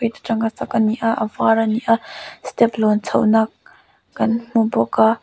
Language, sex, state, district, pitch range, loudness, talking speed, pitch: Mizo, female, Mizoram, Aizawl, 220-230 Hz, -18 LUFS, 185 wpm, 225 Hz